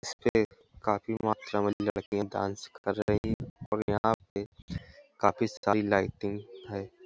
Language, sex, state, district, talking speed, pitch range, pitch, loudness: Hindi, male, Uttar Pradesh, Hamirpur, 135 wpm, 100-110 Hz, 105 Hz, -31 LUFS